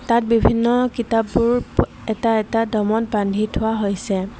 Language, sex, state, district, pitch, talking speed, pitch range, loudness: Assamese, female, Assam, Kamrup Metropolitan, 225 Hz, 125 wpm, 215-235 Hz, -19 LUFS